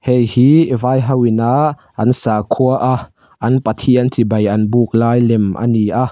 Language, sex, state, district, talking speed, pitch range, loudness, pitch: Mizo, male, Mizoram, Aizawl, 155 wpm, 115-130 Hz, -14 LUFS, 120 Hz